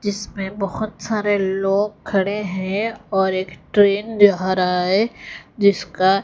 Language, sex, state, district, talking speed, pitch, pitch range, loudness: Hindi, female, Odisha, Khordha, 125 wpm, 200 Hz, 190-205 Hz, -19 LUFS